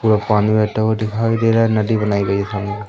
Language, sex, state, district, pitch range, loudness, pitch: Hindi, male, Madhya Pradesh, Umaria, 105-110 Hz, -17 LUFS, 110 Hz